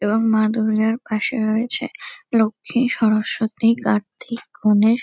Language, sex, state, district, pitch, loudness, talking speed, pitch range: Bengali, female, West Bengal, Kolkata, 225 Hz, -19 LUFS, 105 wpm, 215-240 Hz